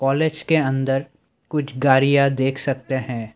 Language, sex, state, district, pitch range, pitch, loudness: Hindi, male, Assam, Sonitpur, 135-145 Hz, 135 Hz, -20 LUFS